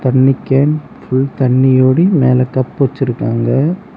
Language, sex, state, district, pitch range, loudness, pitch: Tamil, male, Tamil Nadu, Kanyakumari, 130-140 Hz, -13 LUFS, 130 Hz